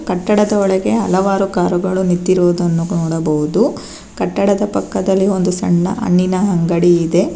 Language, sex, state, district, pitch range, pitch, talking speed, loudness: Kannada, female, Karnataka, Bangalore, 175-195 Hz, 185 Hz, 105 wpm, -15 LUFS